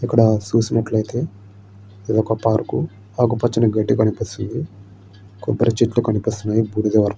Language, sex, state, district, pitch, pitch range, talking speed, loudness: Telugu, male, Andhra Pradesh, Srikakulam, 110 Hz, 105-115 Hz, 110 wpm, -20 LUFS